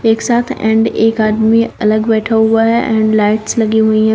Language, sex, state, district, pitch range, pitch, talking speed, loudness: Hindi, female, Uttar Pradesh, Shamli, 220-225 Hz, 220 Hz, 200 wpm, -12 LUFS